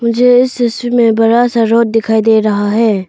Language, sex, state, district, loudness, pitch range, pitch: Hindi, female, Arunachal Pradesh, Papum Pare, -11 LUFS, 220-240 Hz, 230 Hz